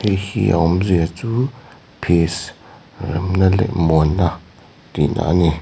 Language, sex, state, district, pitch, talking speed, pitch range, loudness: Mizo, male, Mizoram, Aizawl, 90 Hz, 130 wpm, 85-95 Hz, -18 LUFS